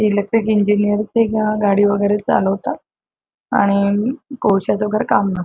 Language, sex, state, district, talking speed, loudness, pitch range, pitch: Marathi, female, Maharashtra, Chandrapur, 110 wpm, -17 LUFS, 200-220 Hz, 205 Hz